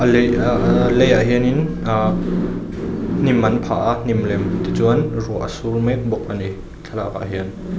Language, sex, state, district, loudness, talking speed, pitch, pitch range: Mizo, male, Mizoram, Aizawl, -18 LUFS, 170 wpm, 110 Hz, 95-120 Hz